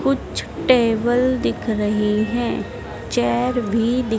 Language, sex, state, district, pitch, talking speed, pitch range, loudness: Hindi, female, Madhya Pradesh, Dhar, 230 Hz, 115 wpm, 210-245 Hz, -20 LUFS